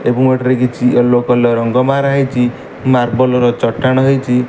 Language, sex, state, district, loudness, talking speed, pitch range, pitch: Odia, male, Odisha, Malkangiri, -13 LUFS, 160 wpm, 120-130 Hz, 125 Hz